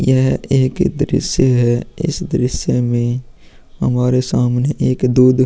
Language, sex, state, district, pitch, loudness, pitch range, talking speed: Hindi, male, Uttar Pradesh, Muzaffarnagar, 130 Hz, -16 LUFS, 125-135 Hz, 130 wpm